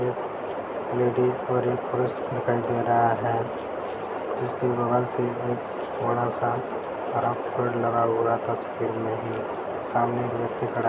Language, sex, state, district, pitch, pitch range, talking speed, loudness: Hindi, male, Bihar, Sitamarhi, 120 Hz, 115-125 Hz, 155 wpm, -26 LUFS